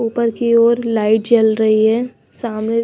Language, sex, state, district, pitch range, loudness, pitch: Hindi, female, Himachal Pradesh, Shimla, 220-235 Hz, -15 LUFS, 230 Hz